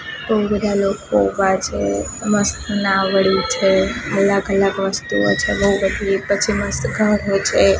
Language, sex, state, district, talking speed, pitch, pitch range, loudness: Gujarati, female, Gujarat, Gandhinagar, 140 wpm, 195 Hz, 190-205 Hz, -18 LUFS